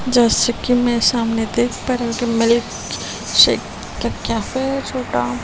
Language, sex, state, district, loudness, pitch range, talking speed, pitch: Hindi, female, Delhi, New Delhi, -18 LUFS, 230-250 Hz, 155 wpm, 240 Hz